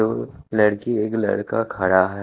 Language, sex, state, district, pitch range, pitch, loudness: Hindi, male, Punjab, Kapurthala, 95-110 Hz, 105 Hz, -21 LUFS